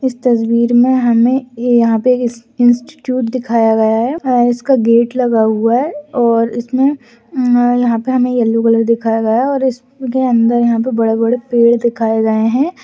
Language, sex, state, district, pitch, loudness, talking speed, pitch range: Hindi, female, Maharashtra, Solapur, 240 Hz, -13 LUFS, 195 wpm, 230-255 Hz